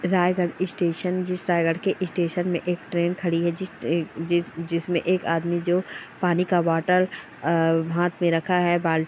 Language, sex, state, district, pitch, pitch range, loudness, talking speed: Hindi, female, Chhattisgarh, Raigarh, 175 Hz, 170-180 Hz, -24 LUFS, 185 wpm